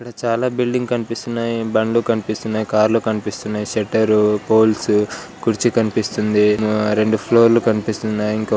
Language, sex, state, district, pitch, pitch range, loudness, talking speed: Telugu, male, Andhra Pradesh, Guntur, 110 Hz, 105-115 Hz, -18 LUFS, 125 wpm